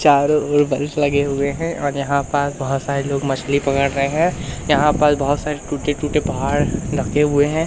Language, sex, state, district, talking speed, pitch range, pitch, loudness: Hindi, male, Madhya Pradesh, Umaria, 195 wpm, 140-150 Hz, 145 Hz, -19 LUFS